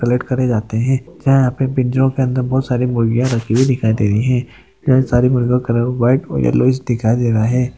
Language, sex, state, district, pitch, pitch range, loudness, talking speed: Hindi, male, Maharashtra, Sindhudurg, 125 Hz, 115-130 Hz, -16 LUFS, 225 wpm